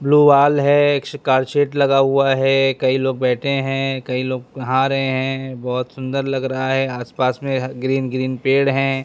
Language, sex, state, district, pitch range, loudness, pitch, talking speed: Hindi, male, Maharashtra, Mumbai Suburban, 130-135 Hz, -18 LUFS, 135 Hz, 180 wpm